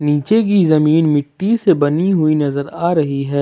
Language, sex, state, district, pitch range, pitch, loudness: Hindi, male, Jharkhand, Ranchi, 145-175 Hz, 155 Hz, -15 LUFS